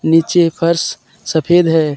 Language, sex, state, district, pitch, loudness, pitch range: Hindi, male, Jharkhand, Deoghar, 165 Hz, -14 LUFS, 160-170 Hz